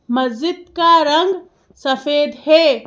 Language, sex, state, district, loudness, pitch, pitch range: Hindi, female, Madhya Pradesh, Bhopal, -15 LUFS, 310 Hz, 280-335 Hz